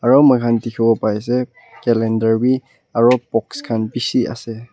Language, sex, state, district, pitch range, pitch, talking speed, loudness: Nagamese, male, Nagaland, Kohima, 115-125 Hz, 115 Hz, 150 wpm, -17 LUFS